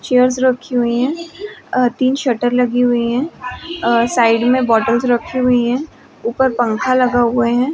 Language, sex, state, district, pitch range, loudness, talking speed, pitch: Hindi, female, Jharkhand, Sahebganj, 240-255 Hz, -16 LUFS, 155 wpm, 250 Hz